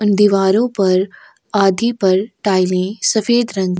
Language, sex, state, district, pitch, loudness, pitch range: Hindi, female, Chhattisgarh, Korba, 200 Hz, -15 LUFS, 190-220 Hz